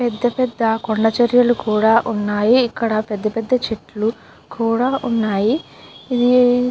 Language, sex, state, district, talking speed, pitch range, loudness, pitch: Telugu, female, Andhra Pradesh, Guntur, 125 wpm, 220-245 Hz, -18 LUFS, 230 Hz